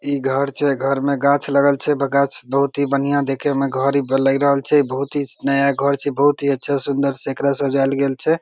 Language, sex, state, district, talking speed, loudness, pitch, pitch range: Maithili, male, Bihar, Begusarai, 230 wpm, -18 LUFS, 140 Hz, 135-140 Hz